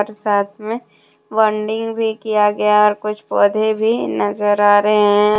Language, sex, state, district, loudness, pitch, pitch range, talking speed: Hindi, female, Jharkhand, Deoghar, -16 LUFS, 210 Hz, 205-220 Hz, 155 wpm